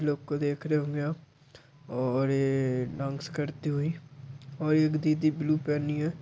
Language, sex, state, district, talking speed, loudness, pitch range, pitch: Hindi, male, Bihar, Muzaffarpur, 175 wpm, -29 LUFS, 135-155 Hz, 145 Hz